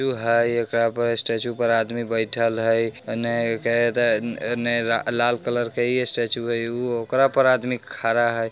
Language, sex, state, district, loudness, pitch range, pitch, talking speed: Bajjika, male, Bihar, Vaishali, -21 LUFS, 115-120 Hz, 120 Hz, 185 wpm